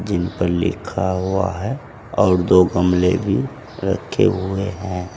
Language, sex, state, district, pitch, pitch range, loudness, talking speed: Hindi, male, Uttar Pradesh, Saharanpur, 95 Hz, 90-100 Hz, -19 LUFS, 130 wpm